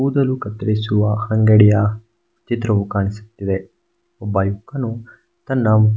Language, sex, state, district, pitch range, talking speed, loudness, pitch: Kannada, male, Karnataka, Mysore, 105-125 Hz, 80 wpm, -18 LUFS, 110 Hz